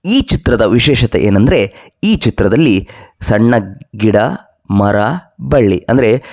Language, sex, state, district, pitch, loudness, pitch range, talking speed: Kannada, male, Karnataka, Bellary, 115 Hz, -12 LUFS, 105-135 Hz, 105 wpm